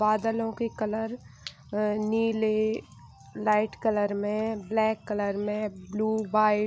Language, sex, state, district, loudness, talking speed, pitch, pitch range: Hindi, female, Bihar, Saharsa, -28 LUFS, 125 wpm, 215 Hz, 210-220 Hz